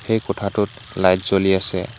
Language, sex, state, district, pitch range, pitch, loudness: Assamese, male, Assam, Hailakandi, 95-110 Hz, 95 Hz, -19 LUFS